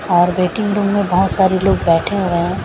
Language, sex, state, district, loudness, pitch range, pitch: Hindi, female, Maharashtra, Mumbai Suburban, -15 LUFS, 175-200 Hz, 185 Hz